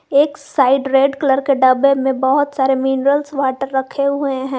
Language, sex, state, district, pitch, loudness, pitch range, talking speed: Hindi, female, Jharkhand, Garhwa, 270 Hz, -16 LUFS, 265-280 Hz, 185 wpm